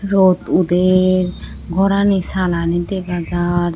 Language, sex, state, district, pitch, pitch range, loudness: Chakma, female, Tripura, Unakoti, 180 Hz, 175-190 Hz, -16 LUFS